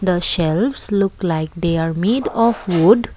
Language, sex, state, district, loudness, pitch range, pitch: English, female, Assam, Kamrup Metropolitan, -17 LUFS, 165-220 Hz, 185 Hz